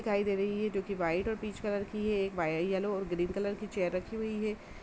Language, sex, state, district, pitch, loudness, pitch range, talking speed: Hindi, female, Uttar Pradesh, Budaun, 200 Hz, -34 LUFS, 190-210 Hz, 285 wpm